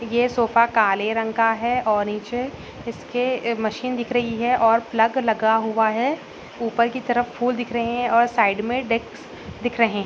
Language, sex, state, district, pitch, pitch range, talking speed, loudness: Hindi, female, Maharashtra, Solapur, 235 Hz, 225-245 Hz, 185 wpm, -21 LUFS